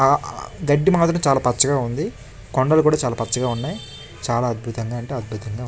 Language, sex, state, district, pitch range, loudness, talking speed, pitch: Telugu, male, Andhra Pradesh, Krishna, 115-145 Hz, -21 LUFS, 170 wpm, 125 Hz